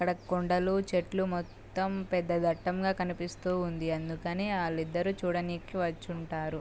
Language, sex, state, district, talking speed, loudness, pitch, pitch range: Telugu, female, Andhra Pradesh, Guntur, 120 wpm, -32 LUFS, 175 Hz, 170-185 Hz